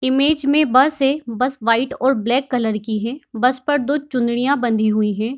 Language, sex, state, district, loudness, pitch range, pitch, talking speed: Hindi, female, Bihar, Darbhanga, -18 LUFS, 230-275 Hz, 255 Hz, 180 wpm